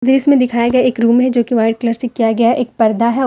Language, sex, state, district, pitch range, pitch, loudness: Hindi, female, Jharkhand, Deoghar, 230-255 Hz, 240 Hz, -14 LUFS